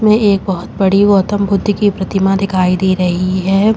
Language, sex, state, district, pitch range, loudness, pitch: Hindi, female, Uttar Pradesh, Jalaun, 185-205 Hz, -13 LUFS, 195 Hz